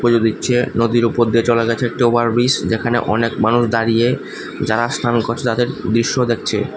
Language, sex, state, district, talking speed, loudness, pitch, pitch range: Bengali, male, Tripura, West Tripura, 175 wpm, -17 LUFS, 120 Hz, 115-120 Hz